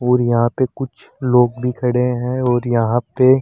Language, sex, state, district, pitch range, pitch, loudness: Hindi, male, Rajasthan, Jaipur, 120-130 Hz, 125 Hz, -17 LUFS